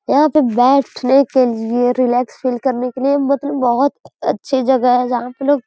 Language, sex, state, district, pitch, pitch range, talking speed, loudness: Hindi, female, Uttar Pradesh, Gorakhpur, 255 Hz, 245-275 Hz, 190 wpm, -15 LUFS